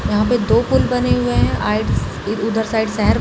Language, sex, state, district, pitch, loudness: Hindi, female, Bihar, Samastipur, 210 Hz, -17 LUFS